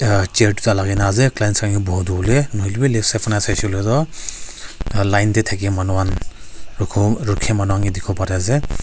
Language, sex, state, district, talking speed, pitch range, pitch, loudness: Nagamese, male, Nagaland, Kohima, 225 wpm, 95-110 Hz, 100 Hz, -18 LUFS